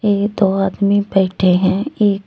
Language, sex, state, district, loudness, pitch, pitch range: Hindi, female, Jharkhand, Deoghar, -16 LUFS, 195 Hz, 190-205 Hz